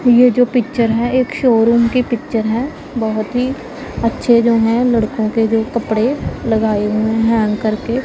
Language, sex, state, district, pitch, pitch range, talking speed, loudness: Hindi, female, Punjab, Pathankot, 230 Hz, 220-245 Hz, 170 wpm, -15 LUFS